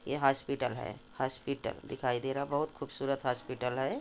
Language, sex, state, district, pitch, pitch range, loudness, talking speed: Hindi, male, Jharkhand, Sahebganj, 135 Hz, 125-140 Hz, -35 LUFS, 180 wpm